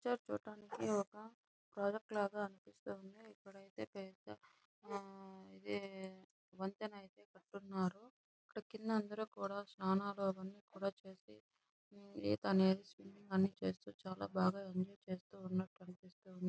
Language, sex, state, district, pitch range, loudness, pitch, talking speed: Telugu, female, Andhra Pradesh, Chittoor, 185-205 Hz, -43 LUFS, 195 Hz, 115 wpm